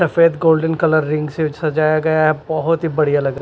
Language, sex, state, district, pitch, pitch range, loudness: Hindi, male, Maharashtra, Washim, 155 Hz, 155-160 Hz, -16 LUFS